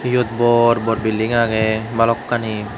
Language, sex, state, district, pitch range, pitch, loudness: Chakma, male, Tripura, West Tripura, 110-120 Hz, 115 Hz, -17 LUFS